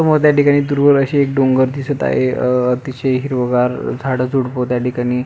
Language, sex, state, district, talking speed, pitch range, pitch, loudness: Marathi, male, Maharashtra, Pune, 195 wpm, 125-140 Hz, 130 Hz, -16 LUFS